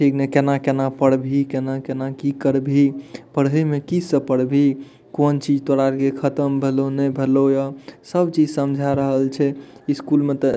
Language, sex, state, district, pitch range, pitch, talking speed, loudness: Maithili, male, Bihar, Madhepura, 135-140 Hz, 140 Hz, 180 wpm, -20 LUFS